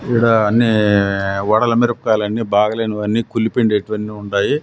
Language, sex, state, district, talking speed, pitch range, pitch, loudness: Telugu, male, Andhra Pradesh, Sri Satya Sai, 130 wpm, 105-115 Hz, 110 Hz, -16 LUFS